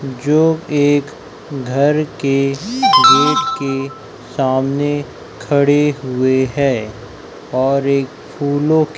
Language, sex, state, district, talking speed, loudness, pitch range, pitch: Hindi, male, Madhya Pradesh, Dhar, 85 wpm, -15 LUFS, 135-150 Hz, 145 Hz